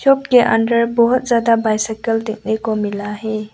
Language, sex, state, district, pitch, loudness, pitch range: Hindi, female, Arunachal Pradesh, Lower Dibang Valley, 225 Hz, -16 LUFS, 215-235 Hz